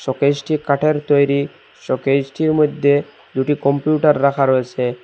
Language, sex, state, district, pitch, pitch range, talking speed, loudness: Bengali, male, Assam, Hailakandi, 140 Hz, 135-150 Hz, 105 wpm, -17 LUFS